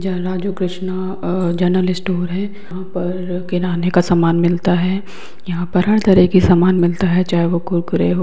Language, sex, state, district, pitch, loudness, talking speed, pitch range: Hindi, male, Uttar Pradesh, Hamirpur, 180 Hz, -17 LUFS, 195 wpm, 175-185 Hz